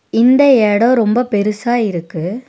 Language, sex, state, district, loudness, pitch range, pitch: Tamil, female, Tamil Nadu, Nilgiris, -13 LUFS, 205-245 Hz, 225 Hz